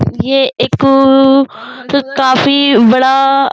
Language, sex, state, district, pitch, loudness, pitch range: Hindi, female, Uttar Pradesh, Jyotiba Phule Nagar, 270 Hz, -10 LUFS, 265-275 Hz